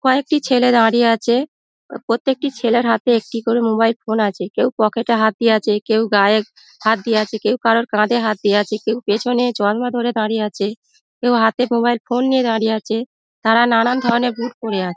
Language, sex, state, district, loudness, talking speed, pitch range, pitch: Bengali, female, West Bengal, Dakshin Dinajpur, -17 LUFS, 210 wpm, 220-240 Hz, 230 Hz